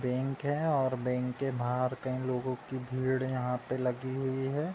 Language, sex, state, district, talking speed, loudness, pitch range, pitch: Hindi, male, Uttar Pradesh, Budaun, 190 wpm, -33 LUFS, 125-135 Hz, 130 Hz